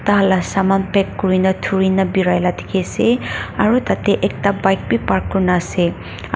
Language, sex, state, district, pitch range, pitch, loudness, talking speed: Nagamese, female, Nagaland, Dimapur, 180-195 Hz, 190 Hz, -17 LUFS, 170 wpm